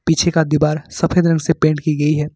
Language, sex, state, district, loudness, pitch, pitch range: Hindi, male, Jharkhand, Ranchi, -16 LUFS, 155 Hz, 150-165 Hz